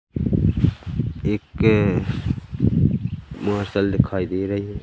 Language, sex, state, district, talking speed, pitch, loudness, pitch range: Hindi, male, Madhya Pradesh, Katni, 75 wpm, 100 Hz, -22 LUFS, 95-105 Hz